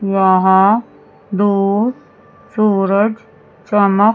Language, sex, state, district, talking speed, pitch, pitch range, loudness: Hindi, female, Chandigarh, Chandigarh, 70 wpm, 200 Hz, 195-215 Hz, -14 LUFS